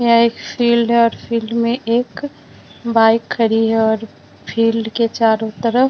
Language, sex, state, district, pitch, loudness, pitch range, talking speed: Hindi, female, Bihar, Vaishali, 230 Hz, -16 LUFS, 225-235 Hz, 175 wpm